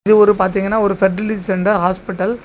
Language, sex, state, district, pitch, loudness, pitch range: Tamil, male, Tamil Nadu, Kanyakumari, 200 Hz, -16 LUFS, 190-210 Hz